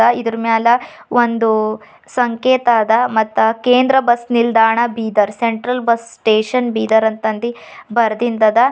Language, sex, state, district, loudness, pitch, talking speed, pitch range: Kannada, female, Karnataka, Bidar, -15 LUFS, 230 Hz, 110 wpm, 220-240 Hz